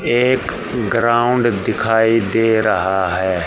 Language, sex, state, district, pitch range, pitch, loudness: Hindi, male, Haryana, Charkhi Dadri, 100-120 Hz, 115 Hz, -16 LUFS